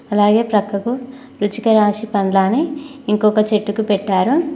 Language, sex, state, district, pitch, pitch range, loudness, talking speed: Telugu, female, Telangana, Mahabubabad, 215 Hz, 205-255 Hz, -17 LUFS, 120 wpm